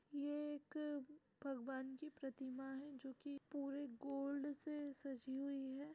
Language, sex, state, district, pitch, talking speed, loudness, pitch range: Hindi, female, Uttar Pradesh, Etah, 280 Hz, 130 wpm, -49 LUFS, 270-290 Hz